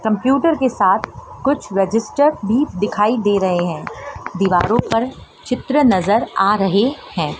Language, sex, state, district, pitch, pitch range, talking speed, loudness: Hindi, female, Madhya Pradesh, Dhar, 220 Hz, 195-260 Hz, 140 wpm, -17 LUFS